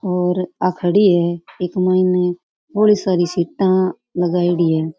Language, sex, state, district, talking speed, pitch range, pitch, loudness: Rajasthani, female, Rajasthan, Churu, 85 wpm, 175-185 Hz, 180 Hz, -17 LUFS